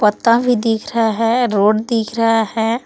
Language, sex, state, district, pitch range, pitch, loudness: Hindi, female, Jharkhand, Palamu, 220-230 Hz, 225 Hz, -16 LUFS